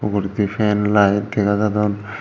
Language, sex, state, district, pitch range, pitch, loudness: Chakma, male, Tripura, Dhalai, 100-105 Hz, 105 Hz, -18 LUFS